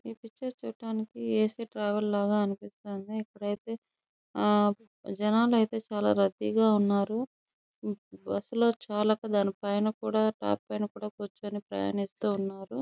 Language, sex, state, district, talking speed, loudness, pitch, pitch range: Telugu, female, Andhra Pradesh, Chittoor, 105 wpm, -30 LUFS, 210 Hz, 200-225 Hz